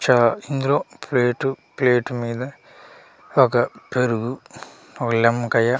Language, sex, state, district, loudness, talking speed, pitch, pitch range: Telugu, male, Andhra Pradesh, Manyam, -21 LUFS, 105 wpm, 125 Hz, 120-130 Hz